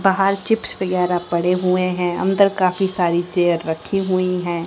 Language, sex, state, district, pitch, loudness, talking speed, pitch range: Hindi, female, Haryana, Rohtak, 180 Hz, -19 LUFS, 165 wpm, 175-190 Hz